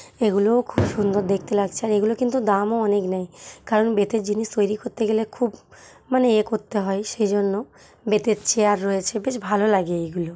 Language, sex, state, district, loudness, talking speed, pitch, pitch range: Bengali, female, West Bengal, Malda, -22 LUFS, 180 wpm, 210 Hz, 200-225 Hz